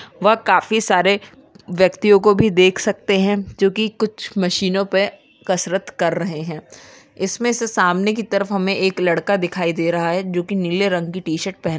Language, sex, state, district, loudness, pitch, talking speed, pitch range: Hindi, female, Uttarakhand, Uttarkashi, -18 LUFS, 190 Hz, 195 wpm, 180-205 Hz